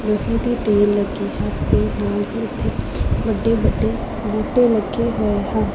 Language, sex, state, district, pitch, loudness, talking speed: Punjabi, female, Punjab, Pathankot, 205 Hz, -20 LUFS, 155 wpm